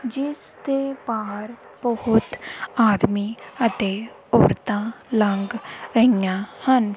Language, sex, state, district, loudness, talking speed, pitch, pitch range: Punjabi, female, Punjab, Kapurthala, -22 LUFS, 85 wpm, 225 Hz, 205-245 Hz